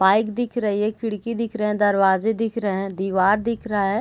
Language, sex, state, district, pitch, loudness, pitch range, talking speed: Hindi, female, Bihar, Sitamarhi, 210 Hz, -22 LUFS, 195-225 Hz, 240 wpm